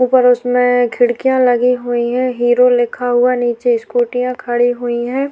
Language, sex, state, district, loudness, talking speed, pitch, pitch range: Hindi, female, Chhattisgarh, Sukma, -14 LUFS, 160 wpm, 245 Hz, 240-250 Hz